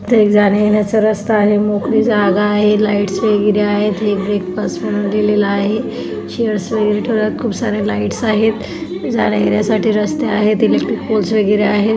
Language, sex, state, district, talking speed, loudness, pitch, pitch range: Marathi, female, Maharashtra, Chandrapur, 150 wpm, -15 LUFS, 210 Hz, 205-215 Hz